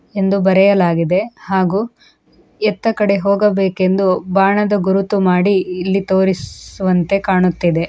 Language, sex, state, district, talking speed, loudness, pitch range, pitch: Kannada, female, Karnataka, Dakshina Kannada, 90 wpm, -15 LUFS, 185-200 Hz, 195 Hz